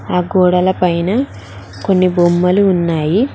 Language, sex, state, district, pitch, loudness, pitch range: Telugu, female, Telangana, Mahabubabad, 180 Hz, -14 LUFS, 175-190 Hz